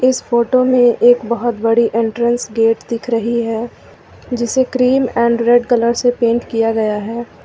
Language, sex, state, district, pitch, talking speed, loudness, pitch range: Hindi, female, Uttar Pradesh, Lucknow, 235 Hz, 170 wpm, -15 LUFS, 230-245 Hz